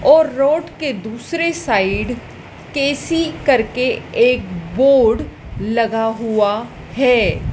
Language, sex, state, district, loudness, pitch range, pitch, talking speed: Hindi, female, Madhya Pradesh, Dhar, -17 LUFS, 225-295 Hz, 255 Hz, 95 wpm